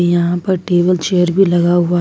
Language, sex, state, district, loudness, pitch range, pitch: Hindi, female, Jharkhand, Ranchi, -14 LUFS, 175-180 Hz, 175 Hz